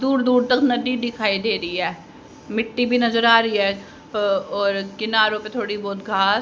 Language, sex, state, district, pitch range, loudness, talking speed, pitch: Hindi, female, Haryana, Rohtak, 200-245 Hz, -20 LUFS, 205 wpm, 220 Hz